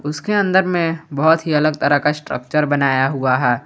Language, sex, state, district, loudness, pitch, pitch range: Hindi, male, Jharkhand, Garhwa, -17 LUFS, 150 Hz, 140-165 Hz